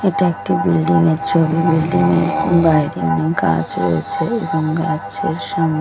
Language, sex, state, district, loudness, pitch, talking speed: Bengali, female, West Bengal, Kolkata, -17 LUFS, 160 Hz, 145 wpm